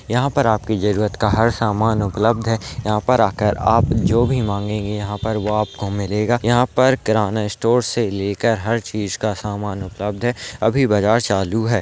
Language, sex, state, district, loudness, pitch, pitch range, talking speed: Hindi, male, Rajasthan, Nagaur, -19 LUFS, 110 Hz, 105-115 Hz, 190 wpm